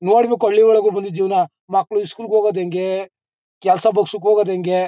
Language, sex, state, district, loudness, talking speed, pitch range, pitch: Kannada, male, Karnataka, Mysore, -17 LUFS, 170 wpm, 190-215 Hz, 205 Hz